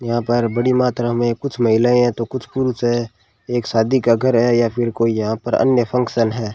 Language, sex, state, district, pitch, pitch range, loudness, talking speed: Hindi, male, Rajasthan, Bikaner, 120 Hz, 115-125 Hz, -18 LUFS, 230 wpm